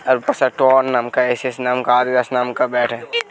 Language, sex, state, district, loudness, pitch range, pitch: Hindi, male, Uttar Pradesh, Hamirpur, -17 LUFS, 125-130 Hz, 125 Hz